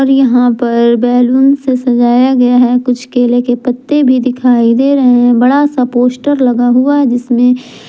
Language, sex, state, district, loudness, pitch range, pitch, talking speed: Hindi, female, Jharkhand, Garhwa, -10 LUFS, 245-260 Hz, 250 Hz, 180 wpm